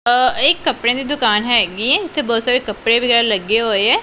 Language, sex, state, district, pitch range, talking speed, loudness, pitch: Punjabi, female, Punjab, Pathankot, 225-275 Hz, 240 wpm, -15 LUFS, 240 Hz